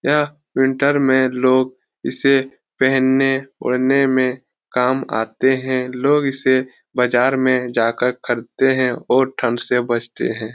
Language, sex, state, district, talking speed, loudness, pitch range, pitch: Hindi, male, Bihar, Lakhisarai, 130 wpm, -18 LUFS, 125-135 Hz, 130 Hz